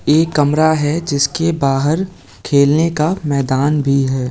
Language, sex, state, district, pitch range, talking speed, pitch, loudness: Hindi, male, Uttar Pradesh, Lalitpur, 140-160 Hz, 140 wpm, 145 Hz, -15 LUFS